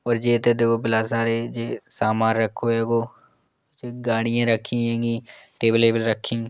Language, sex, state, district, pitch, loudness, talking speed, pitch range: Bundeli, male, Uttar Pradesh, Jalaun, 115 Hz, -22 LUFS, 155 wpm, 115-120 Hz